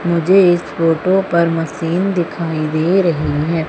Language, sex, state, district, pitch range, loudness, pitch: Hindi, female, Madhya Pradesh, Umaria, 160-180 Hz, -15 LUFS, 170 Hz